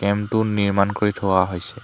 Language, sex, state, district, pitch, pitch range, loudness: Assamese, male, Assam, Hailakandi, 100 Hz, 95-105 Hz, -20 LUFS